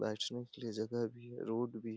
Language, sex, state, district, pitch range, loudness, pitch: Hindi, male, Bihar, Bhagalpur, 110-120 Hz, -41 LUFS, 115 Hz